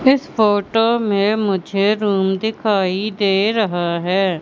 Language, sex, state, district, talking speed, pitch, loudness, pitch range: Hindi, female, Madhya Pradesh, Katni, 120 wpm, 205 Hz, -17 LUFS, 190-215 Hz